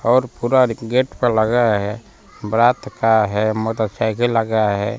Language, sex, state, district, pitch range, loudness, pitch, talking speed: Hindi, male, Bihar, Kaimur, 110-120 Hz, -18 LUFS, 115 Hz, 145 wpm